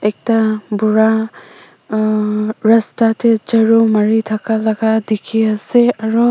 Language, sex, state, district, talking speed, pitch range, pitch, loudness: Nagamese, female, Nagaland, Dimapur, 125 wpm, 215-225 Hz, 220 Hz, -14 LUFS